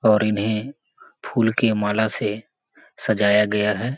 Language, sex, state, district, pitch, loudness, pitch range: Hindi, male, Chhattisgarh, Sarguja, 110 Hz, -21 LUFS, 105-120 Hz